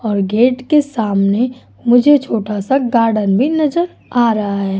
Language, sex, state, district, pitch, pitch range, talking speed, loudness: Hindi, female, Uttar Pradesh, Budaun, 235 Hz, 210-265 Hz, 160 wpm, -15 LUFS